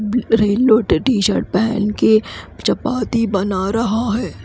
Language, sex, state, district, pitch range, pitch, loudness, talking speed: Hindi, female, Odisha, Khordha, 210-230 Hz, 220 Hz, -17 LUFS, 110 wpm